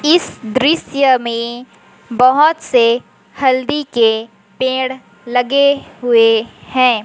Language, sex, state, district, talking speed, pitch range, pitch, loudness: Hindi, female, Chhattisgarh, Raipur, 95 wpm, 230-280 Hz, 255 Hz, -14 LUFS